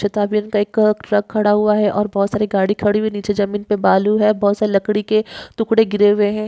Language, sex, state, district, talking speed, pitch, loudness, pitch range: Hindi, female, Maharashtra, Dhule, 260 wpm, 210 Hz, -17 LUFS, 205-215 Hz